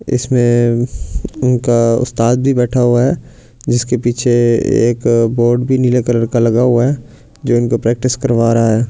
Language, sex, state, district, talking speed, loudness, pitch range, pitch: Hindi, male, Delhi, New Delhi, 160 wpm, -13 LUFS, 120-125 Hz, 120 Hz